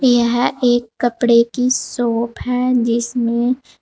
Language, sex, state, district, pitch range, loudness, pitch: Hindi, female, Uttar Pradesh, Saharanpur, 235-250 Hz, -17 LUFS, 240 Hz